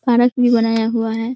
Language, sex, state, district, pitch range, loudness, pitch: Hindi, female, Bihar, Araria, 225-245 Hz, -16 LUFS, 230 Hz